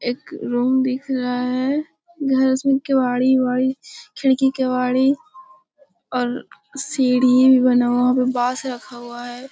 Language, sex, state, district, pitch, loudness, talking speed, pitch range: Hindi, female, Bihar, Jamui, 260 Hz, -19 LUFS, 125 wpm, 250-270 Hz